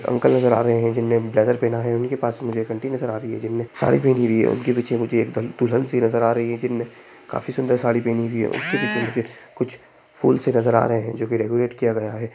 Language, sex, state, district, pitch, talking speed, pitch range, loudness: Hindi, male, Bihar, Jamui, 115 Hz, 270 wpm, 115-120 Hz, -21 LUFS